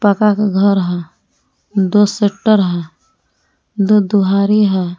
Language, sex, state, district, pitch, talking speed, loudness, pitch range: Hindi, female, Jharkhand, Palamu, 200 Hz, 120 wpm, -14 LUFS, 190-210 Hz